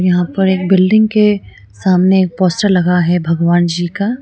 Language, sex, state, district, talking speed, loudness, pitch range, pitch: Hindi, female, Arunachal Pradesh, Lower Dibang Valley, 185 wpm, -13 LUFS, 175-195 Hz, 185 Hz